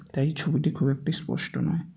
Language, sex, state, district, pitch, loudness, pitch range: Bengali, male, West Bengal, North 24 Parganas, 160 Hz, -27 LUFS, 145-165 Hz